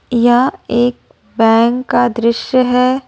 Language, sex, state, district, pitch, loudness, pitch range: Hindi, female, Jharkhand, Ranchi, 245 Hz, -13 LUFS, 235-250 Hz